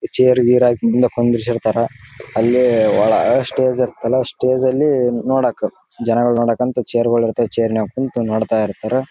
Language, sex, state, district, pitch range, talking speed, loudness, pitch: Kannada, male, Karnataka, Raichur, 115-125 Hz, 160 wpm, -16 LUFS, 120 Hz